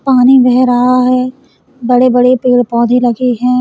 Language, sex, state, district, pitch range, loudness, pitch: Hindi, female, Uttar Pradesh, Lalitpur, 245-255 Hz, -10 LUFS, 250 Hz